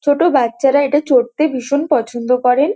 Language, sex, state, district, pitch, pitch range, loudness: Bengali, female, West Bengal, North 24 Parganas, 275 Hz, 250-295 Hz, -15 LUFS